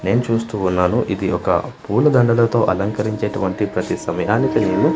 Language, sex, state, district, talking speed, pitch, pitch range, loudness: Telugu, male, Andhra Pradesh, Manyam, 120 wpm, 105 Hz, 95-115 Hz, -18 LUFS